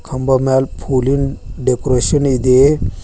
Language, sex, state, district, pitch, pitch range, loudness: Kannada, male, Karnataka, Bidar, 130 Hz, 125-135 Hz, -15 LUFS